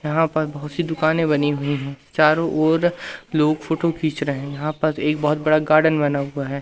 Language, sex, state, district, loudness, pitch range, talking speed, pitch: Hindi, male, Madhya Pradesh, Umaria, -20 LUFS, 145-160 Hz, 215 wpm, 155 Hz